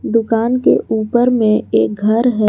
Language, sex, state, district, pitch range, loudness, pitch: Hindi, female, Jharkhand, Garhwa, 215-240 Hz, -14 LUFS, 225 Hz